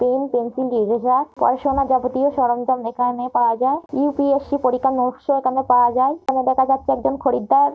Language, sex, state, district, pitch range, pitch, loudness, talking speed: Bengali, female, West Bengal, Dakshin Dinajpur, 250-275 Hz, 260 Hz, -19 LUFS, 180 wpm